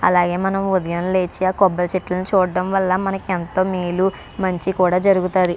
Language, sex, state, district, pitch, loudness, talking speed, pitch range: Telugu, female, Andhra Pradesh, Krishna, 185 Hz, -19 LUFS, 170 wpm, 180-190 Hz